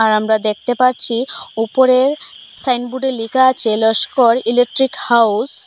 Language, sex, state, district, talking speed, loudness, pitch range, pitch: Bengali, female, Assam, Hailakandi, 115 wpm, -15 LUFS, 225-260 Hz, 245 Hz